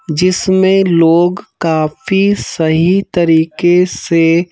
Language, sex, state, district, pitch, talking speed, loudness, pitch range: Hindi, male, Madhya Pradesh, Bhopal, 175 Hz, 80 wpm, -12 LUFS, 165-190 Hz